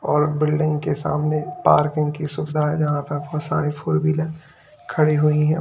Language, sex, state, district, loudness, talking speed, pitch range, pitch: Hindi, male, Uttar Pradesh, Lalitpur, -21 LUFS, 180 wpm, 145-155 Hz, 150 Hz